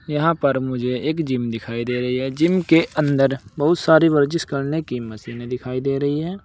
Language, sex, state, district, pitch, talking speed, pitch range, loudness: Hindi, male, Uttar Pradesh, Saharanpur, 140 Hz, 205 wpm, 125-160 Hz, -20 LUFS